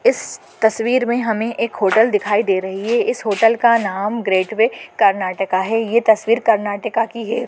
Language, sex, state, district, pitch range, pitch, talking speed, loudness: Hindi, female, Goa, North and South Goa, 205-230 Hz, 225 Hz, 175 wpm, -17 LUFS